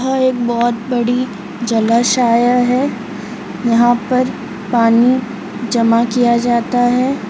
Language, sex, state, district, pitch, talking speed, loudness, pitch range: Hindi, female, Chhattisgarh, Rajnandgaon, 240 Hz, 105 wpm, -14 LUFS, 235-250 Hz